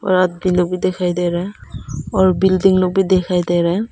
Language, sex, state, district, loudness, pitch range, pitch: Hindi, female, Arunachal Pradesh, Papum Pare, -16 LUFS, 180-190 Hz, 185 Hz